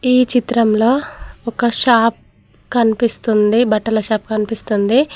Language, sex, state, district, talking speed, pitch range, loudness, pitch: Telugu, female, Telangana, Mahabubabad, 95 wpm, 220-245 Hz, -15 LUFS, 230 Hz